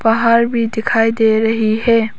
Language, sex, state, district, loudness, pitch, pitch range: Hindi, female, Arunachal Pradesh, Papum Pare, -14 LUFS, 225 Hz, 220-230 Hz